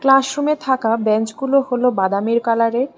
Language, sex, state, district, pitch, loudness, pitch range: Bengali, female, Tripura, West Tripura, 250 Hz, -18 LUFS, 225-270 Hz